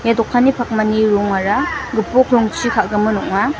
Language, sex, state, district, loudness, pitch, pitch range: Garo, female, Meghalaya, West Garo Hills, -16 LUFS, 220 Hz, 210-245 Hz